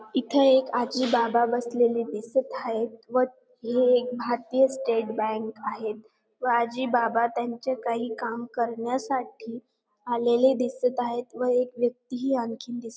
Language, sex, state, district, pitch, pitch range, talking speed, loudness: Marathi, female, Maharashtra, Dhule, 240 Hz, 230-255 Hz, 145 wpm, -26 LUFS